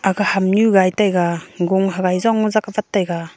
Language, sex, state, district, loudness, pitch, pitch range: Wancho, female, Arunachal Pradesh, Longding, -17 LUFS, 190 Hz, 180-210 Hz